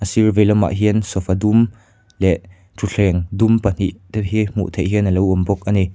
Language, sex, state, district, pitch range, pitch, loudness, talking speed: Mizo, male, Mizoram, Aizawl, 95-105 Hz, 100 Hz, -17 LUFS, 200 wpm